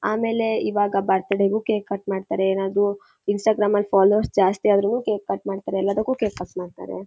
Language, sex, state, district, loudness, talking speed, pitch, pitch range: Kannada, female, Karnataka, Shimoga, -22 LUFS, 170 wpm, 200 Hz, 195-210 Hz